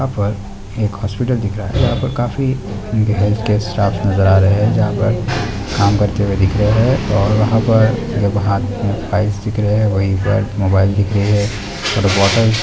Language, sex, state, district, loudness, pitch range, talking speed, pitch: Hindi, male, Bihar, Darbhanga, -16 LUFS, 100-110 Hz, 200 wpm, 105 Hz